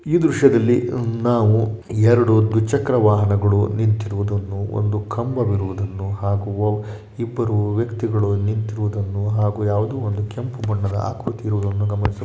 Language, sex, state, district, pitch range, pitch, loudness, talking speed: Kannada, male, Karnataka, Shimoga, 105-115 Hz, 105 Hz, -20 LUFS, 110 wpm